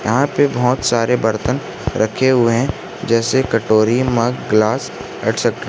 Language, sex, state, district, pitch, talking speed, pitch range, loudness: Hindi, male, Jharkhand, Garhwa, 120 Hz, 150 wpm, 115-130 Hz, -16 LUFS